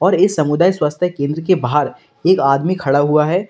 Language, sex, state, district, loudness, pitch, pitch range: Hindi, male, Uttar Pradesh, Lalitpur, -16 LUFS, 155 Hz, 145-185 Hz